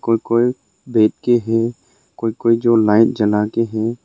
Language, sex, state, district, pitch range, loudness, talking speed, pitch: Hindi, male, Arunachal Pradesh, Longding, 110-120 Hz, -17 LUFS, 175 wpm, 115 Hz